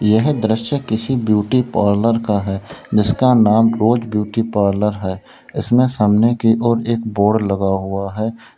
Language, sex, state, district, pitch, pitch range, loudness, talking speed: Hindi, male, Uttar Pradesh, Lalitpur, 110 Hz, 105-115 Hz, -16 LUFS, 155 wpm